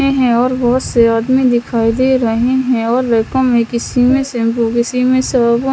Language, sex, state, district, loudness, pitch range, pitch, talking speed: Hindi, female, Punjab, Kapurthala, -13 LUFS, 235-255 Hz, 245 Hz, 115 wpm